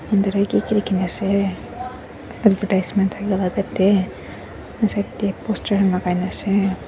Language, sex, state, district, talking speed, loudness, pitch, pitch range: Nagamese, female, Nagaland, Dimapur, 115 wpm, -20 LUFS, 200 Hz, 190-205 Hz